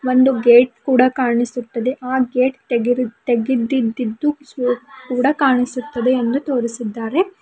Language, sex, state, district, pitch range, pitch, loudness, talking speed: Kannada, female, Karnataka, Bidar, 240-265 Hz, 250 Hz, -18 LUFS, 95 wpm